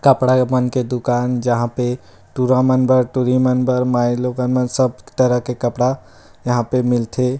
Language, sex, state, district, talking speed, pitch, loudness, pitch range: Chhattisgarhi, male, Chhattisgarh, Rajnandgaon, 180 wpm, 125 Hz, -17 LUFS, 120-130 Hz